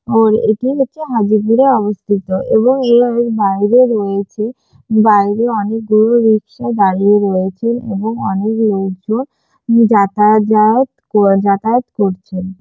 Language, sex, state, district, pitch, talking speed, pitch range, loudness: Bengali, female, West Bengal, Jalpaiguri, 215 Hz, 95 wpm, 200-235 Hz, -13 LUFS